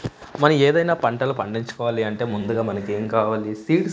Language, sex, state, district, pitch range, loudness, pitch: Telugu, male, Andhra Pradesh, Manyam, 110-145 Hz, -22 LUFS, 115 Hz